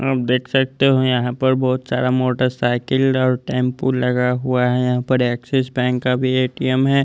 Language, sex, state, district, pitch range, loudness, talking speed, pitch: Hindi, male, Chandigarh, Chandigarh, 125-130 Hz, -18 LUFS, 190 wpm, 130 Hz